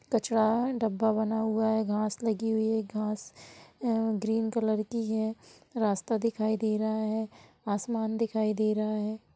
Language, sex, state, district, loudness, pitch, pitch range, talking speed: Hindi, female, Bihar, Sitamarhi, -30 LUFS, 220 Hz, 215-225 Hz, 160 wpm